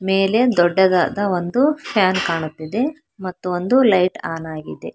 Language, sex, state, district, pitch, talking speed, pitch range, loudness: Kannada, female, Karnataka, Bangalore, 185 Hz, 120 wpm, 175-230 Hz, -18 LUFS